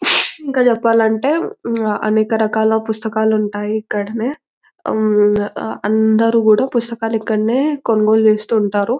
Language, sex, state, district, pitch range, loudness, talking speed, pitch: Telugu, female, Telangana, Nalgonda, 215-230 Hz, -16 LUFS, 100 wpm, 220 Hz